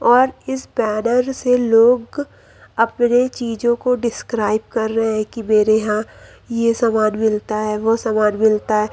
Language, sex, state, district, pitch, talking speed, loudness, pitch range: Hindi, male, Uttar Pradesh, Lucknow, 225 Hz, 155 wpm, -18 LUFS, 215-240 Hz